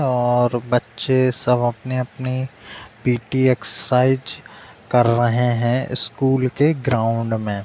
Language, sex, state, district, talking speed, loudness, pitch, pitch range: Hindi, male, Uttar Pradesh, Deoria, 100 wpm, -19 LUFS, 125 Hz, 120-130 Hz